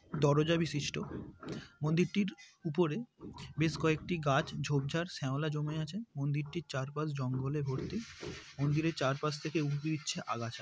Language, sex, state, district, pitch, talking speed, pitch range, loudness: Bengali, male, West Bengal, Paschim Medinipur, 150 Hz, 120 wpm, 140-165 Hz, -35 LUFS